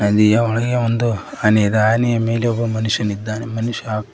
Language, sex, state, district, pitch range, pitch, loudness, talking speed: Kannada, male, Karnataka, Koppal, 105-115 Hz, 110 Hz, -18 LUFS, 145 wpm